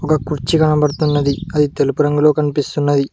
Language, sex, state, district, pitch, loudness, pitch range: Telugu, male, Telangana, Mahabubabad, 150 Hz, -16 LUFS, 145-150 Hz